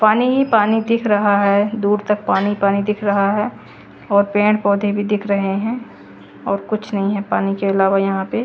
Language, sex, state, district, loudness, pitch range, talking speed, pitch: Hindi, female, Haryana, Charkhi Dadri, -17 LUFS, 200-215 Hz, 200 wpm, 205 Hz